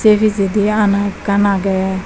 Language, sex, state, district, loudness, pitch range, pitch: Chakma, female, Tripura, Dhalai, -15 LUFS, 195-210 Hz, 200 Hz